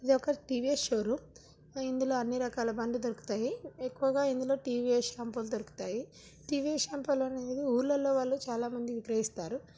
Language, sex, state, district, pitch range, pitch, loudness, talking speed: Telugu, female, Telangana, Nalgonda, 240-270 Hz, 255 Hz, -33 LUFS, 135 wpm